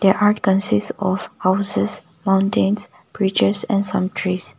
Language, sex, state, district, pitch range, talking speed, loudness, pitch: English, female, Nagaland, Kohima, 185-200 Hz, 120 wpm, -19 LUFS, 190 Hz